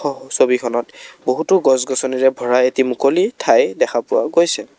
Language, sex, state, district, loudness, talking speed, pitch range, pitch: Assamese, male, Assam, Kamrup Metropolitan, -16 LUFS, 150 wpm, 125-135 Hz, 130 Hz